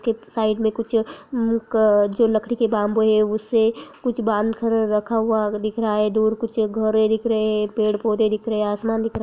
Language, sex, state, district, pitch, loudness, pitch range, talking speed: Hindi, female, Bihar, Bhagalpur, 220 Hz, -21 LUFS, 215-225 Hz, 215 wpm